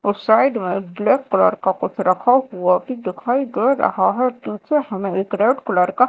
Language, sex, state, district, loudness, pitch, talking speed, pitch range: Hindi, female, Madhya Pradesh, Dhar, -18 LUFS, 215 Hz, 205 wpm, 190-255 Hz